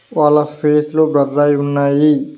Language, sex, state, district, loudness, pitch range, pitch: Telugu, male, Telangana, Mahabubabad, -14 LUFS, 145-150 Hz, 150 Hz